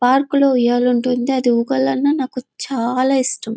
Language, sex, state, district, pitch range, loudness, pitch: Telugu, female, Andhra Pradesh, Anantapur, 245-270 Hz, -17 LUFS, 255 Hz